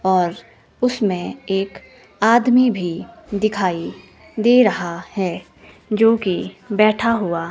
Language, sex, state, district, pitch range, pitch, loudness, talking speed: Hindi, female, Himachal Pradesh, Shimla, 185-230 Hz, 205 Hz, -19 LUFS, 105 wpm